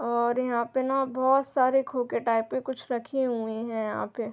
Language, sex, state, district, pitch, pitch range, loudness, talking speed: Hindi, female, Uttar Pradesh, Hamirpur, 250 Hz, 235-265 Hz, -27 LUFS, 220 wpm